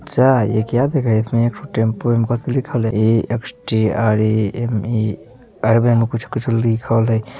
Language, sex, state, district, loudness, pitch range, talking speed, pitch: Bajjika, male, Bihar, Vaishali, -18 LUFS, 110-120 Hz, 120 wpm, 115 Hz